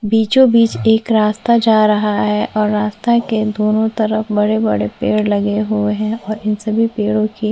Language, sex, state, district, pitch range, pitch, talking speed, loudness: Hindi, female, Chhattisgarh, Korba, 210-220 Hz, 215 Hz, 165 wpm, -15 LUFS